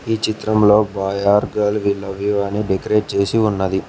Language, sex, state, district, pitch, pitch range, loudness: Telugu, male, Telangana, Mahabubabad, 105 Hz, 100-105 Hz, -18 LUFS